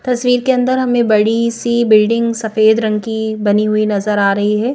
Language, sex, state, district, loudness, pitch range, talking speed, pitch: Hindi, female, Madhya Pradesh, Bhopal, -14 LUFS, 215-235 Hz, 200 wpm, 220 Hz